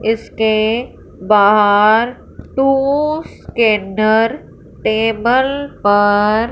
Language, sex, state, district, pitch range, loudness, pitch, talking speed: Hindi, female, Punjab, Fazilka, 210-255 Hz, -14 LUFS, 220 Hz, 65 wpm